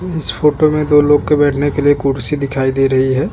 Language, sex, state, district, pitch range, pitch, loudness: Hindi, male, Chhattisgarh, Bastar, 135-150 Hz, 145 Hz, -14 LUFS